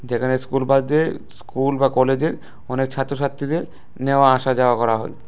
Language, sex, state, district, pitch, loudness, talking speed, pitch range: Bengali, male, Tripura, West Tripura, 135 Hz, -20 LUFS, 150 wpm, 130-140 Hz